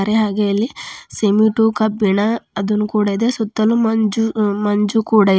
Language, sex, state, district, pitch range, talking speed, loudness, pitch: Kannada, female, Karnataka, Bidar, 205-220 Hz, 145 wpm, -17 LUFS, 215 Hz